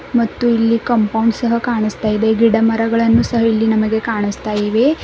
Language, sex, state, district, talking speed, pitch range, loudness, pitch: Kannada, female, Karnataka, Bidar, 155 wpm, 220-230 Hz, -15 LUFS, 225 Hz